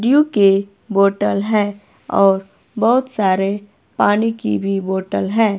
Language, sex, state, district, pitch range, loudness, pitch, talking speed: Hindi, female, Himachal Pradesh, Shimla, 195-215 Hz, -17 LUFS, 200 Hz, 130 wpm